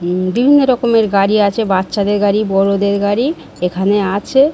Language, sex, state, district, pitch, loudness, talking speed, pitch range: Bengali, female, West Bengal, Dakshin Dinajpur, 205 Hz, -14 LUFS, 145 wpm, 195-225 Hz